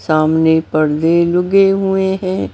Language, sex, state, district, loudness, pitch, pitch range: Hindi, female, Maharashtra, Mumbai Suburban, -14 LUFS, 170 Hz, 155-190 Hz